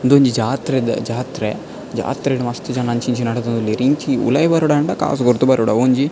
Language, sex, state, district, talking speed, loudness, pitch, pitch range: Tulu, male, Karnataka, Dakshina Kannada, 145 wpm, -17 LUFS, 130 Hz, 120-140 Hz